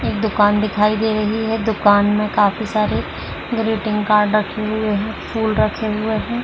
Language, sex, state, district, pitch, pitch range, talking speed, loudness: Hindi, female, Uttar Pradesh, Budaun, 215 Hz, 210-220 Hz, 175 wpm, -18 LUFS